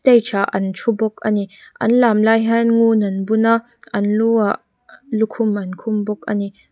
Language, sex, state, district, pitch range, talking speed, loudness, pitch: Mizo, female, Mizoram, Aizawl, 205-230 Hz, 205 wpm, -18 LUFS, 220 Hz